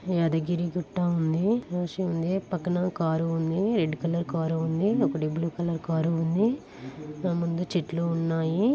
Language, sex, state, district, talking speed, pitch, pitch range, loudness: Telugu, female, Telangana, Karimnagar, 125 wpm, 170 Hz, 160-180 Hz, -27 LUFS